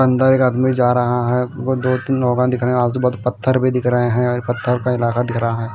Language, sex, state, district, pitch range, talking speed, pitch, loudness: Hindi, male, Himachal Pradesh, Shimla, 120-130 Hz, 280 wpm, 125 Hz, -17 LUFS